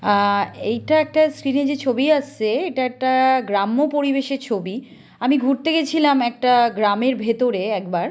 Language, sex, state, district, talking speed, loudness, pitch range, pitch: Bengali, female, West Bengal, Kolkata, 155 wpm, -19 LUFS, 220-280 Hz, 260 Hz